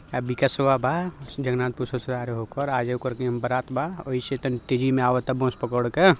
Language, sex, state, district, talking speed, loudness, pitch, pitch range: Bhojpuri, male, Bihar, Gopalganj, 195 wpm, -25 LUFS, 125 Hz, 125-135 Hz